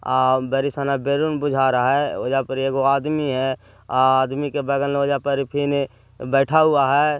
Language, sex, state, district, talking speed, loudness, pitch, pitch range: Hindi, male, Bihar, Jahanabad, 185 wpm, -20 LUFS, 140 Hz, 130-140 Hz